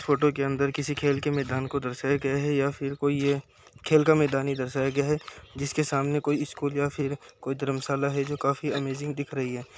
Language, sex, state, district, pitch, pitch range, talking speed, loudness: Hindi, male, Uttar Pradesh, Muzaffarnagar, 140 Hz, 135-145 Hz, 225 wpm, -27 LUFS